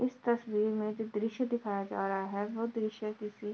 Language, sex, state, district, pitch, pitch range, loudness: Hindi, female, Bihar, Kishanganj, 215 Hz, 210-230 Hz, -35 LUFS